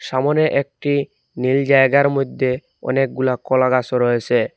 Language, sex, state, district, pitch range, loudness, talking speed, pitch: Bengali, male, Assam, Hailakandi, 130-140 Hz, -18 LUFS, 120 wpm, 135 Hz